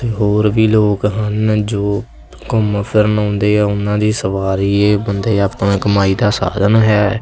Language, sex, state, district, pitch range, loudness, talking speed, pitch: Punjabi, male, Punjab, Kapurthala, 100-105 Hz, -14 LUFS, 165 wpm, 105 Hz